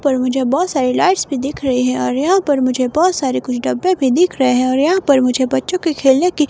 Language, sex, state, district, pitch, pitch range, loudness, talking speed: Hindi, female, Himachal Pradesh, Shimla, 270 Hz, 255-330 Hz, -15 LUFS, 270 wpm